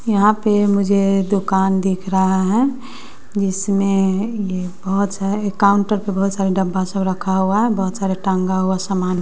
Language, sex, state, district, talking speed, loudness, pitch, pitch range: Hindi, female, Bihar, West Champaran, 165 wpm, -18 LUFS, 195 Hz, 190-205 Hz